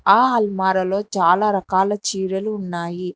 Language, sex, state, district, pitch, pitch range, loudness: Telugu, female, Telangana, Hyderabad, 190 Hz, 185-205 Hz, -19 LUFS